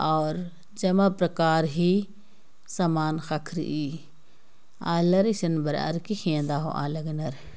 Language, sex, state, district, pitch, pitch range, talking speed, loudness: Sadri, female, Chhattisgarh, Jashpur, 165 Hz, 155-185 Hz, 40 wpm, -26 LUFS